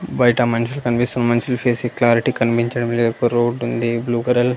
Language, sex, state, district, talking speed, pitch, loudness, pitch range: Telugu, male, Andhra Pradesh, Annamaya, 195 wpm, 120 Hz, -18 LUFS, 115-125 Hz